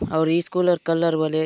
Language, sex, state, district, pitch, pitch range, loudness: Halbi, male, Chhattisgarh, Bastar, 165 Hz, 160-175 Hz, -21 LUFS